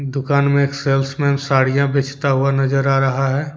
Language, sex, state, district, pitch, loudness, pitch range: Hindi, male, Jharkhand, Deoghar, 140 Hz, -17 LUFS, 135-140 Hz